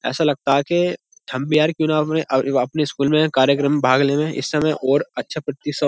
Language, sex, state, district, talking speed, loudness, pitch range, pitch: Hindi, male, Uttar Pradesh, Jyotiba Phule Nagar, 225 wpm, -19 LUFS, 135-155 Hz, 145 Hz